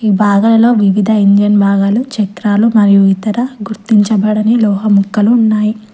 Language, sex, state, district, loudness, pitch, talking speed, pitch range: Telugu, female, Telangana, Mahabubabad, -11 LUFS, 210 Hz, 110 wpm, 205-220 Hz